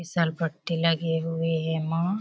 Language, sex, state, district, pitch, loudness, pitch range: Hindi, female, Chhattisgarh, Bilaspur, 165 Hz, -27 LUFS, 160-170 Hz